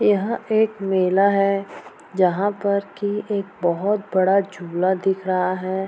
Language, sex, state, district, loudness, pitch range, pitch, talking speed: Hindi, female, Bihar, Purnia, -21 LUFS, 185-205 Hz, 195 Hz, 145 wpm